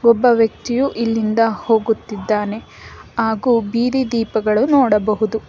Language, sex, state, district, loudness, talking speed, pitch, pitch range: Kannada, female, Karnataka, Bangalore, -17 LUFS, 85 wpm, 225 Hz, 215-235 Hz